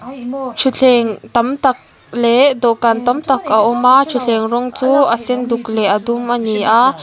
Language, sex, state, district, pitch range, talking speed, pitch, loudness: Mizo, female, Mizoram, Aizawl, 230-260 Hz, 190 wpm, 240 Hz, -14 LUFS